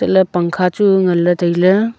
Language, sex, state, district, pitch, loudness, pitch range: Wancho, female, Arunachal Pradesh, Longding, 180 Hz, -14 LUFS, 175-190 Hz